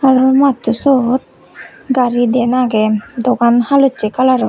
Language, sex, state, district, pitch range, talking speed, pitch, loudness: Chakma, female, Tripura, West Tripura, 240-265 Hz, 135 wpm, 250 Hz, -13 LUFS